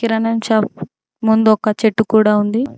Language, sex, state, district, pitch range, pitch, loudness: Telugu, female, Telangana, Mahabubabad, 215-225 Hz, 220 Hz, -15 LUFS